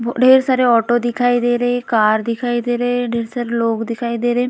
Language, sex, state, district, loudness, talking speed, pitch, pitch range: Hindi, female, Bihar, Vaishali, -16 LUFS, 265 wpm, 240 Hz, 235-245 Hz